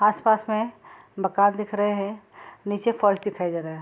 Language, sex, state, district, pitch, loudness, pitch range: Hindi, female, Bihar, Saharsa, 205 Hz, -24 LUFS, 200-215 Hz